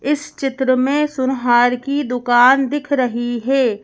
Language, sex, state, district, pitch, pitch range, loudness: Hindi, female, Madhya Pradesh, Bhopal, 260 Hz, 245-275 Hz, -16 LUFS